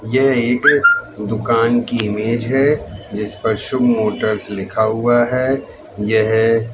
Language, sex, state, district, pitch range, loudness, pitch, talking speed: Hindi, male, Madhya Pradesh, Katni, 110-135 Hz, -16 LUFS, 120 Hz, 125 wpm